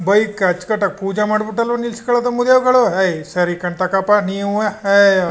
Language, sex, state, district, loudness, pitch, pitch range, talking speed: Kannada, male, Karnataka, Chamarajanagar, -16 LUFS, 200 Hz, 190-230 Hz, 145 wpm